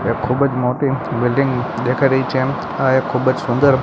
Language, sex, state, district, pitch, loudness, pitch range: Gujarati, male, Gujarat, Gandhinagar, 130 Hz, -17 LUFS, 125-135 Hz